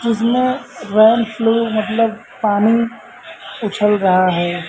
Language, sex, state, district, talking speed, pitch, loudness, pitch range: Hindi, male, Uttar Pradesh, Lucknow, 90 wpm, 225 Hz, -16 LUFS, 205-230 Hz